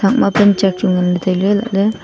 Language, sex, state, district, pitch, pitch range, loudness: Wancho, female, Arunachal Pradesh, Longding, 195 Hz, 185-205 Hz, -14 LUFS